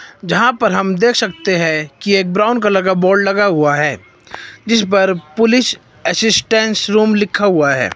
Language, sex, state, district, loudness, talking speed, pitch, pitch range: Hindi, male, Himachal Pradesh, Shimla, -14 LUFS, 175 wpm, 200 Hz, 185-220 Hz